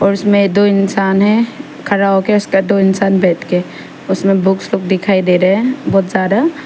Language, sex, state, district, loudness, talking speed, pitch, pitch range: Hindi, female, Arunachal Pradesh, Papum Pare, -13 LUFS, 180 wpm, 195 Hz, 190-205 Hz